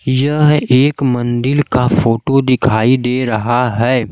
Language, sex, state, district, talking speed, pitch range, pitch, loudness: Hindi, male, Bihar, Kaimur, 130 wpm, 120-135 Hz, 125 Hz, -13 LUFS